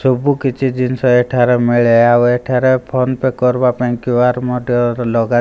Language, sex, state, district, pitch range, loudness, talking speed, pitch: Odia, male, Odisha, Malkangiri, 120-130 Hz, -14 LUFS, 165 wpm, 125 Hz